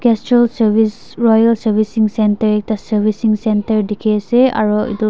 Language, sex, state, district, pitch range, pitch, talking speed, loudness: Nagamese, female, Nagaland, Dimapur, 215-225 Hz, 215 Hz, 140 wpm, -15 LUFS